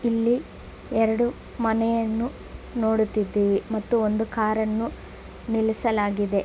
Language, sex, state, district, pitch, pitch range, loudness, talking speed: Kannada, female, Karnataka, Belgaum, 220 Hz, 215-230 Hz, -24 LUFS, 85 wpm